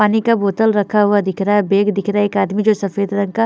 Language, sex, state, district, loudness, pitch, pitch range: Hindi, female, Bihar, Patna, -16 LUFS, 205 Hz, 200-210 Hz